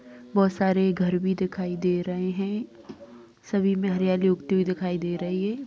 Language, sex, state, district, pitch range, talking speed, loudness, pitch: Hindi, female, Bihar, Muzaffarpur, 175-190 Hz, 180 wpm, -25 LUFS, 185 Hz